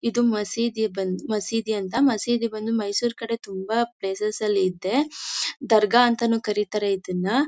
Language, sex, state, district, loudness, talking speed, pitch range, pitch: Kannada, female, Karnataka, Mysore, -24 LUFS, 130 wpm, 205-235 Hz, 220 Hz